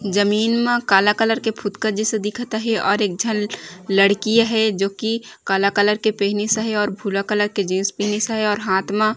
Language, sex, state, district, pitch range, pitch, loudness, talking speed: Chhattisgarhi, female, Chhattisgarh, Raigarh, 200-220 Hz, 210 Hz, -19 LUFS, 195 wpm